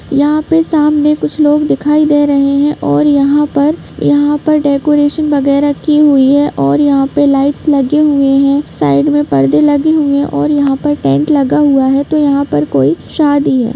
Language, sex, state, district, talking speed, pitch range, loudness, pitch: Hindi, female, Jharkhand, Jamtara, 195 wpm, 275-295 Hz, -11 LUFS, 285 Hz